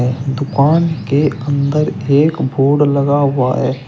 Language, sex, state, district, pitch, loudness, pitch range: Hindi, male, Uttar Pradesh, Shamli, 140 Hz, -14 LUFS, 135-145 Hz